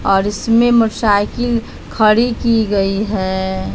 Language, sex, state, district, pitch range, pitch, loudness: Hindi, female, Bihar, West Champaran, 195-230 Hz, 215 Hz, -15 LUFS